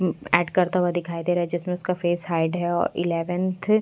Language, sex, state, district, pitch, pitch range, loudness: Hindi, female, Bihar, Katihar, 175 Hz, 175-180 Hz, -24 LUFS